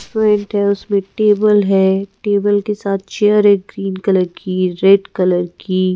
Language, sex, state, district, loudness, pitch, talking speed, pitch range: Hindi, female, Madhya Pradesh, Bhopal, -15 LUFS, 200 Hz, 170 wpm, 190-205 Hz